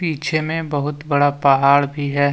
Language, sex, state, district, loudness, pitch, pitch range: Hindi, male, Jharkhand, Deoghar, -18 LUFS, 145 Hz, 140-155 Hz